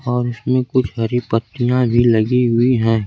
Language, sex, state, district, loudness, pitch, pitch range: Hindi, male, Bihar, Kaimur, -17 LUFS, 120 Hz, 115-125 Hz